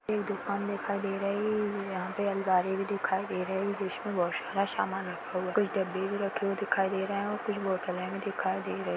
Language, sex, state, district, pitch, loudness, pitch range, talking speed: Hindi, female, Maharashtra, Dhule, 195 Hz, -31 LUFS, 190-200 Hz, 240 wpm